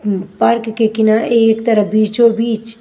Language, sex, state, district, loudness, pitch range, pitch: Hindi, female, Maharashtra, Washim, -14 LUFS, 215-230 Hz, 225 Hz